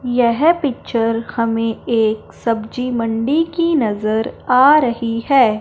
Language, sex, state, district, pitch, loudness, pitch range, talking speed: Hindi, female, Punjab, Fazilka, 235 Hz, -17 LUFS, 225-270 Hz, 120 wpm